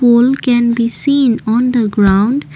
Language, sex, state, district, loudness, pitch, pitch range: English, female, Assam, Kamrup Metropolitan, -12 LUFS, 240 Hz, 225-250 Hz